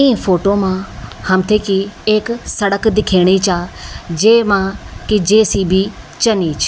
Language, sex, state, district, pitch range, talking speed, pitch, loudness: Garhwali, female, Uttarakhand, Tehri Garhwal, 185-215 Hz, 125 wpm, 200 Hz, -14 LUFS